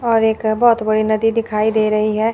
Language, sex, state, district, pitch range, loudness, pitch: Hindi, female, Chandigarh, Chandigarh, 215-225 Hz, -16 LUFS, 220 Hz